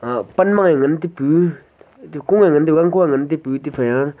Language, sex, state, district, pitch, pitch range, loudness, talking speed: Wancho, male, Arunachal Pradesh, Longding, 150 Hz, 135-175 Hz, -16 LUFS, 185 wpm